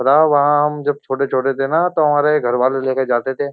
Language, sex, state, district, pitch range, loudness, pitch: Hindi, male, Uttar Pradesh, Jyotiba Phule Nagar, 135-145 Hz, -16 LUFS, 140 Hz